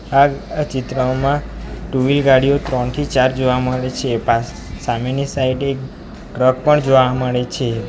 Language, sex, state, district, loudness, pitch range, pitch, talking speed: Gujarati, male, Gujarat, Valsad, -17 LUFS, 125-140 Hz, 130 Hz, 145 wpm